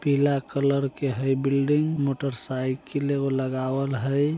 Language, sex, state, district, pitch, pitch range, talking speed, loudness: Bajjika, male, Bihar, Vaishali, 140 Hz, 135-140 Hz, 150 wpm, -25 LUFS